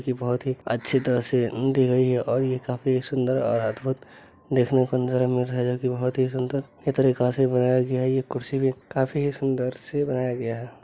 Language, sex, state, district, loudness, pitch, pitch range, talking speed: Hindi, male, Bihar, Begusarai, -24 LUFS, 130 Hz, 125-130 Hz, 225 wpm